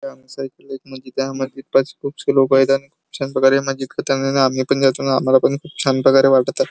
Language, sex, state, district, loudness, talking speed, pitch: Marathi, male, Maharashtra, Chandrapur, -17 LUFS, 205 wpm, 135 Hz